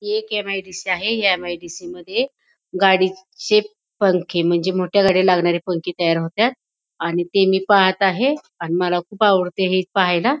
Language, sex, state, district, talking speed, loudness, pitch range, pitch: Marathi, female, Maharashtra, Pune, 155 wpm, -19 LUFS, 180-210 Hz, 190 Hz